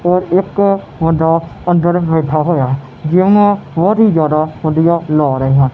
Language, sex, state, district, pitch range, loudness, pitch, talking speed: Punjabi, male, Punjab, Kapurthala, 155-180 Hz, -13 LUFS, 165 Hz, 135 wpm